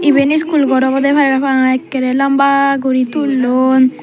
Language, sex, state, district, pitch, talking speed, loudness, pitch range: Chakma, female, Tripura, Dhalai, 270 Hz, 135 wpm, -13 LUFS, 260-280 Hz